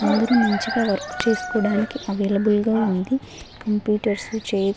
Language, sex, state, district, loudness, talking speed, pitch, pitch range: Telugu, female, Andhra Pradesh, Sri Satya Sai, -22 LUFS, 125 wpm, 210 Hz, 200-225 Hz